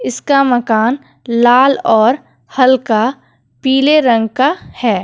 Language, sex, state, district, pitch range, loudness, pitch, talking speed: Hindi, female, Jharkhand, Deoghar, 230-270 Hz, -12 LUFS, 250 Hz, 105 wpm